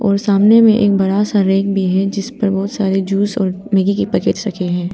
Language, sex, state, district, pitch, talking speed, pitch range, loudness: Hindi, female, Arunachal Pradesh, Papum Pare, 200 Hz, 230 wpm, 195-205 Hz, -15 LUFS